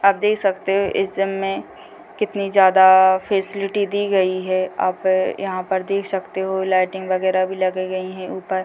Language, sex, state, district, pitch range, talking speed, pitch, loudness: Hindi, female, Bihar, Gopalganj, 185-200 Hz, 195 wpm, 190 Hz, -19 LUFS